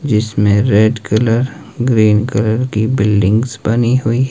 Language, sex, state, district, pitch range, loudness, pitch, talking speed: Hindi, male, Himachal Pradesh, Shimla, 105-120 Hz, -14 LUFS, 115 Hz, 125 wpm